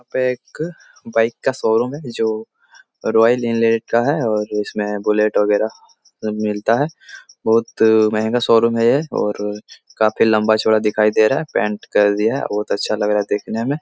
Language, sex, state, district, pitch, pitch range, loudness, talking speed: Hindi, male, Bihar, Jahanabad, 110 Hz, 105-115 Hz, -18 LUFS, 190 wpm